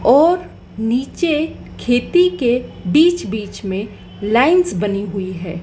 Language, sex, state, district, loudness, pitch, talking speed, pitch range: Hindi, female, Madhya Pradesh, Dhar, -17 LUFS, 225 Hz, 115 wpm, 195-295 Hz